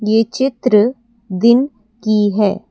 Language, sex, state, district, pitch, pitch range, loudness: Hindi, female, Assam, Kamrup Metropolitan, 220 Hz, 210-235 Hz, -15 LUFS